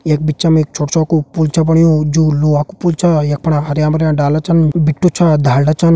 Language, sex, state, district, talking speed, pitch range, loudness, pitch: Hindi, male, Uttarakhand, Uttarkashi, 220 wpm, 150-165 Hz, -13 LUFS, 155 Hz